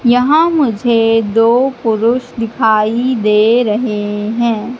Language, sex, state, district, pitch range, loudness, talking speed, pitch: Hindi, female, Madhya Pradesh, Katni, 220-245 Hz, -13 LUFS, 100 wpm, 230 Hz